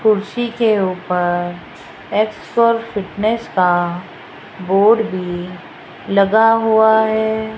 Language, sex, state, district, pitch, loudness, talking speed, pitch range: Hindi, female, Rajasthan, Jaipur, 210 Hz, -16 LUFS, 85 wpm, 185-220 Hz